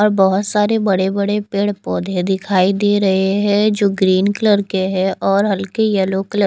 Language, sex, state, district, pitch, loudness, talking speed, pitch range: Hindi, female, Chandigarh, Chandigarh, 195 Hz, -16 LUFS, 185 wpm, 190-205 Hz